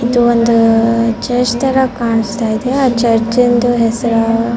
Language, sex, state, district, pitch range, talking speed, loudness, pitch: Kannada, female, Karnataka, Bellary, 230-245 Hz, 130 wpm, -13 LUFS, 235 Hz